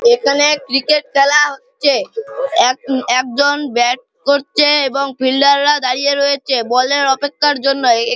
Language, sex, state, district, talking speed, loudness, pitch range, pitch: Bengali, male, West Bengal, Malda, 125 wpm, -14 LUFS, 260-295 Hz, 280 Hz